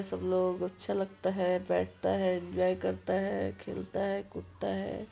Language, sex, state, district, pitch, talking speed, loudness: Hindi, female, Bihar, Vaishali, 180 Hz, 175 wpm, -33 LUFS